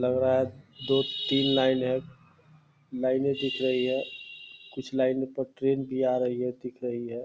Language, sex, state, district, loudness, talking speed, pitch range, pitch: Hindi, male, Bihar, Purnia, -28 LUFS, 180 wpm, 125-135 Hz, 130 Hz